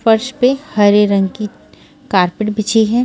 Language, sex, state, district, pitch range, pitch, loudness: Hindi, female, Maharashtra, Washim, 205-240 Hz, 215 Hz, -14 LUFS